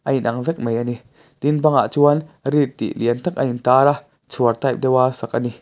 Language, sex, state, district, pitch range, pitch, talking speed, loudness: Mizo, male, Mizoram, Aizawl, 120-145 Hz, 130 Hz, 265 wpm, -19 LUFS